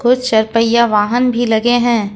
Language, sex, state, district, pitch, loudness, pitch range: Hindi, female, Jharkhand, Ranchi, 235 Hz, -13 LUFS, 220-245 Hz